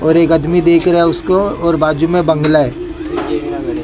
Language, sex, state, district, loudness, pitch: Hindi, male, Maharashtra, Mumbai Suburban, -13 LUFS, 170 Hz